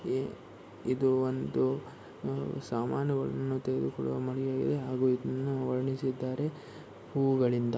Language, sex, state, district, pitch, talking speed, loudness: Kannada, male, Karnataka, Shimoga, 125 Hz, 75 wpm, -32 LUFS